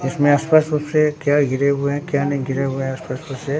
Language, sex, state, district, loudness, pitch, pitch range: Hindi, male, Bihar, Katihar, -19 LUFS, 140 Hz, 135-150 Hz